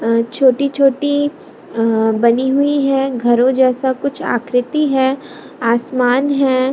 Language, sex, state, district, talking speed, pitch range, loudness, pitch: Hindi, female, Bihar, Lakhisarai, 115 wpm, 240-280 Hz, -15 LUFS, 260 Hz